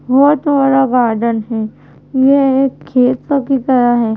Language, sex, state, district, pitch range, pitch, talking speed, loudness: Hindi, female, Madhya Pradesh, Bhopal, 240-275 Hz, 260 Hz, 145 wpm, -13 LUFS